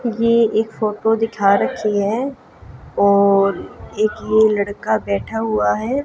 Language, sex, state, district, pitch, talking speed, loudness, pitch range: Hindi, female, Haryana, Jhajjar, 210 Hz, 130 wpm, -17 LUFS, 200-225 Hz